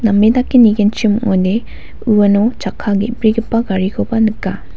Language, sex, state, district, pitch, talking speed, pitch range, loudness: Garo, female, Meghalaya, West Garo Hills, 220 Hz, 115 wpm, 205-230 Hz, -14 LUFS